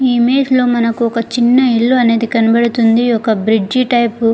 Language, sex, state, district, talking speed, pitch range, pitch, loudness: Telugu, female, Andhra Pradesh, Guntur, 150 wpm, 230-245 Hz, 235 Hz, -12 LUFS